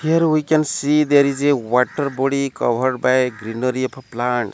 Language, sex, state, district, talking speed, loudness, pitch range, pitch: English, male, Odisha, Malkangiri, 200 wpm, -18 LUFS, 125-145 Hz, 130 Hz